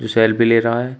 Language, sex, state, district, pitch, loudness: Hindi, male, Uttar Pradesh, Shamli, 115 Hz, -16 LUFS